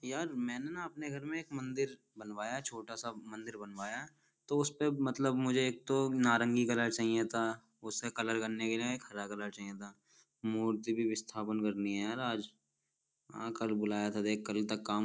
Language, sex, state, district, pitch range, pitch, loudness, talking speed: Hindi, male, Uttar Pradesh, Jyotiba Phule Nagar, 105-130 Hz, 115 Hz, -36 LUFS, 190 wpm